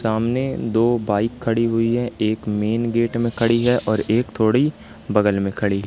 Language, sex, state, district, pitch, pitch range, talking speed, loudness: Hindi, male, Madhya Pradesh, Katni, 115 Hz, 110-120 Hz, 185 wpm, -20 LUFS